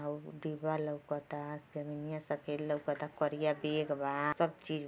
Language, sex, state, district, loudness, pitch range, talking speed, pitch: Hindi, female, Uttar Pradesh, Deoria, -37 LUFS, 145-150 Hz, 135 wpm, 150 Hz